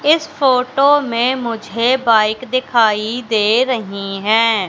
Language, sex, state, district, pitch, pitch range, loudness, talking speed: Hindi, female, Madhya Pradesh, Katni, 235 Hz, 220-255 Hz, -15 LUFS, 115 wpm